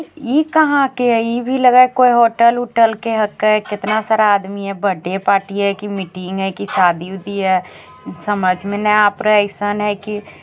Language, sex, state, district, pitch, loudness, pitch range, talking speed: Hindi, female, Bihar, Jamui, 210 Hz, -15 LUFS, 195-235 Hz, 205 wpm